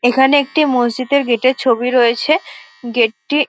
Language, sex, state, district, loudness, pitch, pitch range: Bengali, female, West Bengal, Dakshin Dinajpur, -15 LUFS, 255 Hz, 240-280 Hz